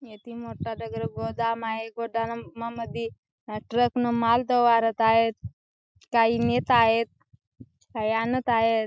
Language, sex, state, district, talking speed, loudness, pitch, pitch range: Marathi, female, Maharashtra, Chandrapur, 115 wpm, -25 LUFS, 230 Hz, 225-235 Hz